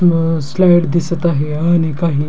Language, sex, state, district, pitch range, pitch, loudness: Marathi, male, Maharashtra, Dhule, 155-170 Hz, 170 Hz, -14 LUFS